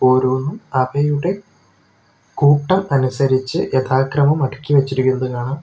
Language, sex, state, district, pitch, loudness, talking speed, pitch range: Malayalam, male, Kerala, Kollam, 135 Hz, -17 LUFS, 85 wpm, 130-145 Hz